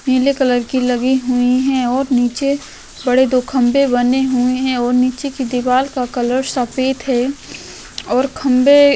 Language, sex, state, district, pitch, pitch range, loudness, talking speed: Hindi, female, Chhattisgarh, Korba, 255 Hz, 250-265 Hz, -16 LUFS, 160 wpm